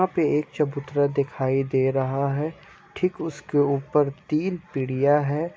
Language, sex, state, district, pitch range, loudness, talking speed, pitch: Hindi, male, Bihar, Kishanganj, 140-160 Hz, -24 LUFS, 150 wpm, 145 Hz